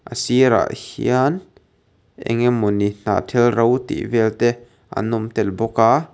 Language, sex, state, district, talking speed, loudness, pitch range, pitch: Mizo, male, Mizoram, Aizawl, 115 wpm, -19 LUFS, 110-120 Hz, 115 Hz